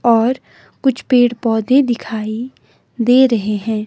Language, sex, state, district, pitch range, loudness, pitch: Hindi, female, Himachal Pradesh, Shimla, 220-255 Hz, -16 LUFS, 240 Hz